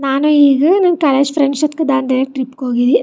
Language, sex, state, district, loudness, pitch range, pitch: Kannada, female, Karnataka, Chamarajanagar, -13 LUFS, 265-300 Hz, 275 Hz